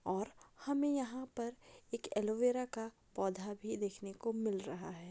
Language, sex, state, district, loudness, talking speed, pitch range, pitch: Maithili, female, Bihar, Darbhanga, -40 LUFS, 165 wpm, 195-245 Hz, 220 Hz